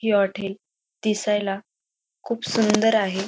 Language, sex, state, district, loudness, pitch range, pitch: Marathi, female, Maharashtra, Dhule, -23 LUFS, 195-220 Hz, 210 Hz